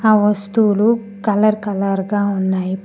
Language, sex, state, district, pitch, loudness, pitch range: Telugu, female, Telangana, Mahabubabad, 205 Hz, -17 LUFS, 195-215 Hz